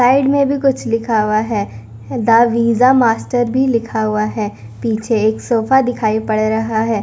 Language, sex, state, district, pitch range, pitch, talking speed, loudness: Hindi, female, Punjab, Kapurthala, 215-245 Hz, 225 Hz, 180 wpm, -15 LUFS